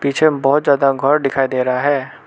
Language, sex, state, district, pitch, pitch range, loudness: Hindi, male, Arunachal Pradesh, Lower Dibang Valley, 140 Hz, 135-145 Hz, -15 LUFS